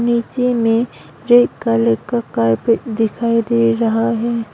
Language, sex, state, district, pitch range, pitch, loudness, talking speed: Hindi, female, Arunachal Pradesh, Longding, 225-235 Hz, 230 Hz, -16 LUFS, 130 wpm